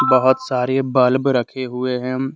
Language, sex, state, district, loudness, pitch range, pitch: Hindi, male, Jharkhand, Deoghar, -18 LUFS, 125-130 Hz, 130 Hz